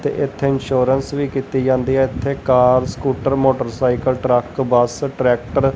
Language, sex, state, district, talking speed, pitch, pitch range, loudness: Punjabi, male, Punjab, Kapurthala, 155 wpm, 130 Hz, 125-135 Hz, -17 LUFS